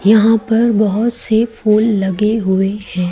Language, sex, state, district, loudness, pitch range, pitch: Hindi, female, Madhya Pradesh, Umaria, -14 LUFS, 200-225 Hz, 215 Hz